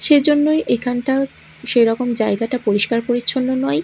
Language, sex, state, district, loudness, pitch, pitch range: Bengali, female, Odisha, Malkangiri, -17 LUFS, 245 Hz, 230-265 Hz